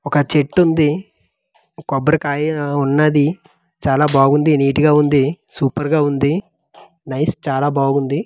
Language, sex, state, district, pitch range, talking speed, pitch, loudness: Telugu, male, Andhra Pradesh, Manyam, 140-155 Hz, 115 wpm, 150 Hz, -16 LUFS